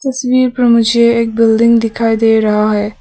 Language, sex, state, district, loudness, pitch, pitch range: Hindi, female, Arunachal Pradesh, Papum Pare, -11 LUFS, 230 Hz, 225-235 Hz